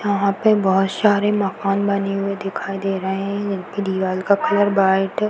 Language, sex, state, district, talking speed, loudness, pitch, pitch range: Hindi, female, Uttar Pradesh, Varanasi, 190 wpm, -19 LUFS, 195 Hz, 195-200 Hz